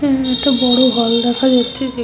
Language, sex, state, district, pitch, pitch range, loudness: Bengali, female, West Bengal, Malda, 255 Hz, 240-265 Hz, -14 LUFS